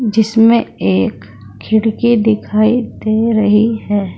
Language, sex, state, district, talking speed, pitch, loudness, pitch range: Hindi, female, Uttar Pradesh, Saharanpur, 100 wpm, 220 Hz, -13 LUFS, 205-225 Hz